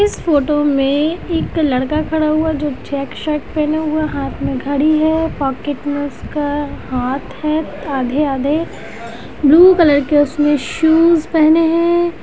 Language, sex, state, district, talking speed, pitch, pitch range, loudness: Hindi, female, Bihar, Muzaffarpur, 140 wpm, 300 Hz, 285-320 Hz, -15 LUFS